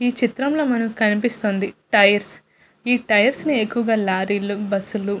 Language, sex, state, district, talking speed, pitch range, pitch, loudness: Telugu, female, Andhra Pradesh, Visakhapatnam, 175 wpm, 205-240 Hz, 215 Hz, -19 LUFS